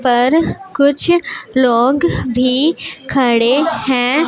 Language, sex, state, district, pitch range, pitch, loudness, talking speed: Hindi, female, Punjab, Pathankot, 250-320 Hz, 265 Hz, -14 LUFS, 85 wpm